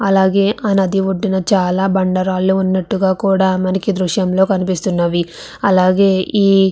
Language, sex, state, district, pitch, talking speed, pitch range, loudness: Telugu, female, Andhra Pradesh, Visakhapatnam, 190 Hz, 105 wpm, 185-195 Hz, -15 LUFS